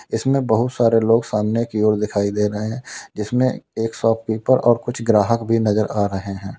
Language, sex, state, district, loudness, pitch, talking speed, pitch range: Hindi, male, Uttar Pradesh, Lalitpur, -19 LUFS, 115 Hz, 200 wpm, 105-120 Hz